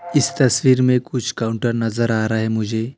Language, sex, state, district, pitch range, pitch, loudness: Hindi, male, West Bengal, Alipurduar, 110-130 Hz, 120 Hz, -18 LUFS